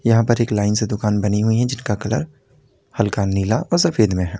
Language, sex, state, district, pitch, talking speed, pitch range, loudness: Hindi, male, Uttar Pradesh, Lalitpur, 110 Hz, 230 wpm, 105-120 Hz, -19 LUFS